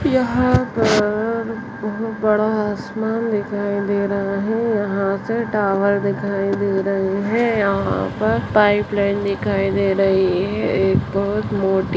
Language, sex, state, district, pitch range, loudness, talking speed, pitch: Hindi, female, Chhattisgarh, Bastar, 195-220 Hz, -19 LUFS, 140 wpm, 205 Hz